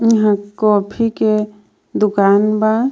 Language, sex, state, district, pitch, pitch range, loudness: Bhojpuri, female, Jharkhand, Palamu, 215 Hz, 205-220 Hz, -15 LUFS